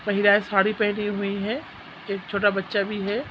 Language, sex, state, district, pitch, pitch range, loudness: Hindi, female, Chhattisgarh, Raigarh, 205 Hz, 200-210 Hz, -24 LUFS